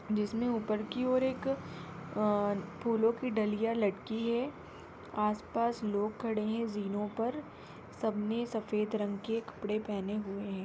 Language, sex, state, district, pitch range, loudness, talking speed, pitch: Hindi, female, Rajasthan, Nagaur, 205-230 Hz, -34 LUFS, 145 wpm, 215 Hz